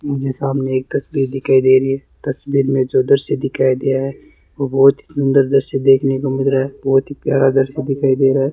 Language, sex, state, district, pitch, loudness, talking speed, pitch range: Hindi, male, Rajasthan, Bikaner, 135 Hz, -16 LUFS, 230 wpm, 135-140 Hz